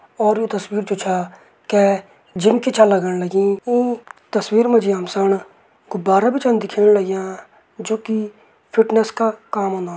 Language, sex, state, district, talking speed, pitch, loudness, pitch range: Garhwali, male, Uttarakhand, Tehri Garhwal, 170 wpm, 210 Hz, -18 LUFS, 195-225 Hz